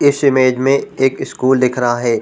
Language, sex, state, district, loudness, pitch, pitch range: Hindi, male, Chhattisgarh, Korba, -15 LUFS, 130 Hz, 125-135 Hz